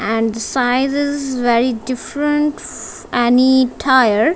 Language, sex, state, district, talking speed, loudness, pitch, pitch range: English, female, Punjab, Kapurthala, 80 wpm, -16 LUFS, 255 Hz, 235-280 Hz